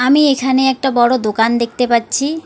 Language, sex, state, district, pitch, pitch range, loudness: Bengali, female, West Bengal, Alipurduar, 255 Hz, 235-270 Hz, -14 LUFS